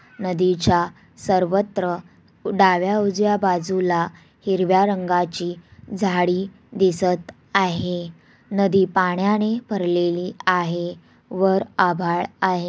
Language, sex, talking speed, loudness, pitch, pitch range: Marathi, female, 80 wpm, -21 LUFS, 185 Hz, 175-195 Hz